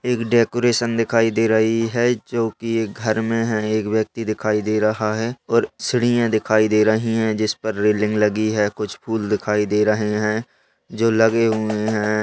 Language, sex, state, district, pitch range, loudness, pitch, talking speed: Hindi, male, Bihar, Lakhisarai, 105-115 Hz, -19 LUFS, 110 Hz, 185 wpm